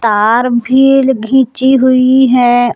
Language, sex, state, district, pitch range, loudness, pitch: Hindi, female, Jharkhand, Palamu, 240-265 Hz, -9 LUFS, 255 Hz